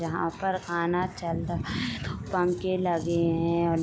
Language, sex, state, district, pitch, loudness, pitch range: Hindi, female, Jharkhand, Sahebganj, 170 Hz, -28 LUFS, 170-180 Hz